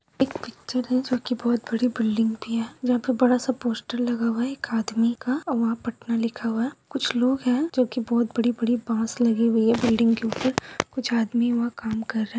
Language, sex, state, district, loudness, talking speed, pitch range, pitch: Hindi, female, Bihar, Begusarai, -24 LUFS, 225 wpm, 230-250 Hz, 235 Hz